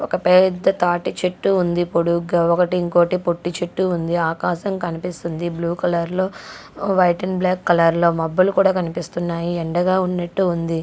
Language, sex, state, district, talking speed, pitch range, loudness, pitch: Telugu, female, Andhra Pradesh, Guntur, 150 wpm, 170-185 Hz, -19 LUFS, 175 Hz